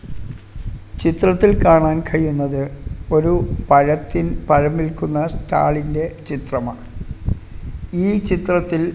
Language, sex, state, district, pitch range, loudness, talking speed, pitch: Malayalam, male, Kerala, Kasaragod, 130-165 Hz, -18 LUFS, 75 wpm, 150 Hz